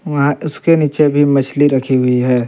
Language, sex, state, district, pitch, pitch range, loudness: Hindi, male, Jharkhand, Palamu, 140 Hz, 130-150 Hz, -14 LUFS